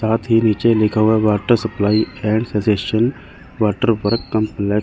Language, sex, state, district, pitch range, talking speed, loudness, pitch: Hindi, male, Chandigarh, Chandigarh, 105-115 Hz, 160 wpm, -17 LUFS, 110 Hz